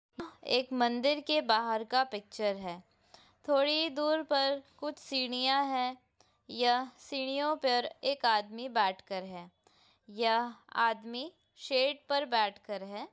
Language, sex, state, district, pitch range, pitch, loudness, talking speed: Hindi, female, Uttar Pradesh, Hamirpur, 225-280 Hz, 250 Hz, -32 LUFS, 130 wpm